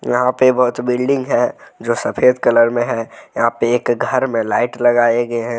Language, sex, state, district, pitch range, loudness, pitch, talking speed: Hindi, male, Jharkhand, Deoghar, 120-125 Hz, -16 LUFS, 120 Hz, 205 wpm